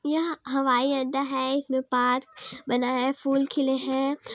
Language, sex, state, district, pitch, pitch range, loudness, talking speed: Hindi, female, Chhattisgarh, Sarguja, 265 Hz, 260-275 Hz, -26 LUFS, 150 wpm